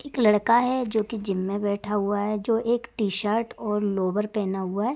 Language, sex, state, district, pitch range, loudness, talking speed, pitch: Hindi, female, Uttar Pradesh, Gorakhpur, 205-230 Hz, -25 LUFS, 215 wpm, 210 Hz